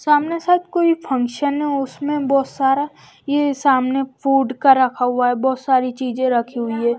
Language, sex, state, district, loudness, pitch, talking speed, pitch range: Hindi, female, Bihar, West Champaran, -18 LUFS, 270 Hz, 180 wpm, 255-290 Hz